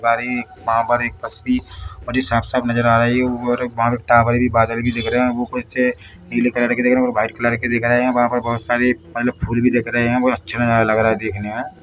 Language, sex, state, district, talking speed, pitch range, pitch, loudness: Hindi, male, Chhattisgarh, Bilaspur, 255 wpm, 115-125 Hz, 120 Hz, -18 LUFS